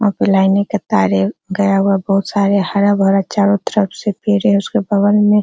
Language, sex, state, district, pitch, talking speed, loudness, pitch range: Hindi, female, Bihar, Araria, 200 Hz, 200 wpm, -15 LUFS, 195-205 Hz